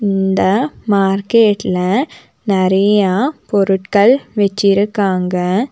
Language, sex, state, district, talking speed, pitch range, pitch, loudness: Tamil, female, Tamil Nadu, Nilgiris, 50 wpm, 190-210 Hz, 200 Hz, -14 LUFS